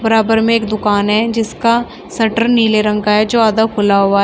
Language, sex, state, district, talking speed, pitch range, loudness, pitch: Hindi, female, Uttar Pradesh, Shamli, 225 wpm, 210-230 Hz, -13 LUFS, 220 Hz